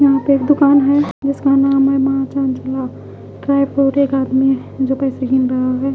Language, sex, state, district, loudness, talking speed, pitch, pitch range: Hindi, female, Haryana, Charkhi Dadri, -15 LUFS, 150 wpm, 275 Hz, 265-275 Hz